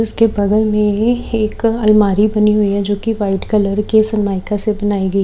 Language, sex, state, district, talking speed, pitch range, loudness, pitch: Hindi, female, Chhattisgarh, Raipur, 185 wpm, 205-215 Hz, -15 LUFS, 210 Hz